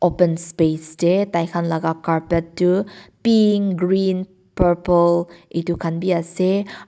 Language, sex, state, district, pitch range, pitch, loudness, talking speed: Nagamese, female, Nagaland, Kohima, 170-190 Hz, 175 Hz, -19 LUFS, 130 wpm